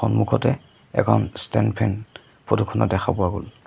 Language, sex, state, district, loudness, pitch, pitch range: Assamese, male, Assam, Sonitpur, -22 LUFS, 110 Hz, 100-115 Hz